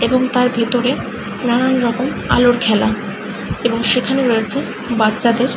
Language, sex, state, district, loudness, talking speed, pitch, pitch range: Bengali, female, West Bengal, Kolkata, -16 LUFS, 120 wpm, 240 Hz, 220-250 Hz